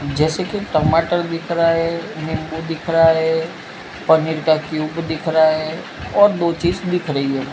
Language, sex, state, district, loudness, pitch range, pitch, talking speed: Hindi, male, Gujarat, Gandhinagar, -18 LUFS, 155-170 Hz, 160 Hz, 175 wpm